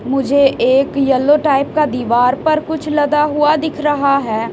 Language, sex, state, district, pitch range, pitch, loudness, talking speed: Hindi, female, Haryana, Rohtak, 265-300 Hz, 280 Hz, -14 LUFS, 170 wpm